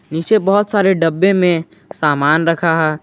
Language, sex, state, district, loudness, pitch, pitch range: Hindi, male, Jharkhand, Garhwa, -14 LUFS, 165 Hz, 160-195 Hz